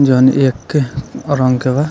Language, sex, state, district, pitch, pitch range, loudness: Bhojpuri, male, Bihar, Muzaffarpur, 135 Hz, 130-140 Hz, -14 LUFS